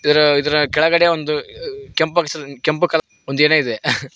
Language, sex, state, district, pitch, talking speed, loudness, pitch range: Kannada, male, Karnataka, Koppal, 155 Hz, 175 wpm, -17 LUFS, 150-170 Hz